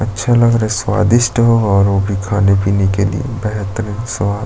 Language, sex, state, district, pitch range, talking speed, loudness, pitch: Hindi, male, Chhattisgarh, Jashpur, 100-115 Hz, 215 wpm, -14 LUFS, 105 Hz